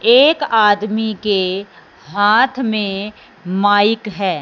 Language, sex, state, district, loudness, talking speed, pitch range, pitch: Hindi, male, Punjab, Fazilka, -15 LUFS, 95 wpm, 195-220 Hz, 210 Hz